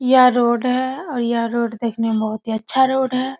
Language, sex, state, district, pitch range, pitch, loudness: Hindi, female, Bihar, Samastipur, 230-260 Hz, 240 Hz, -19 LUFS